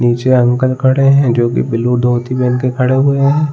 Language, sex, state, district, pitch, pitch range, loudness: Hindi, male, Chhattisgarh, Balrampur, 130 Hz, 120-135 Hz, -12 LUFS